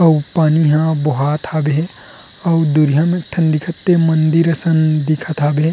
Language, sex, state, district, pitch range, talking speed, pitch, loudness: Chhattisgarhi, male, Chhattisgarh, Rajnandgaon, 150-165 Hz, 180 wpm, 155 Hz, -15 LUFS